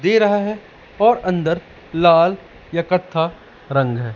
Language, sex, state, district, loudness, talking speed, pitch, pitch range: Hindi, male, Madhya Pradesh, Katni, -18 LUFS, 145 wpm, 170 Hz, 165-200 Hz